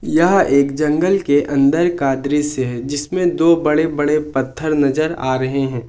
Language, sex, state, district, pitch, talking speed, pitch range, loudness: Hindi, male, Jharkhand, Ranchi, 145 Hz, 165 wpm, 135-160 Hz, -16 LUFS